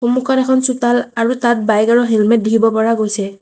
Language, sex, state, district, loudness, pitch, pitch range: Assamese, female, Assam, Sonitpur, -14 LUFS, 230 Hz, 220-245 Hz